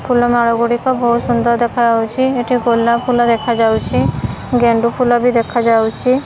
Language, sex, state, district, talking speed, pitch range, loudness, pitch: Odia, female, Odisha, Khordha, 125 wpm, 235-245 Hz, -14 LUFS, 235 Hz